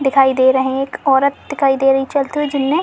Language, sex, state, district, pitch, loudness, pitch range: Hindi, female, Uttar Pradesh, Muzaffarnagar, 270 Hz, -15 LUFS, 270-285 Hz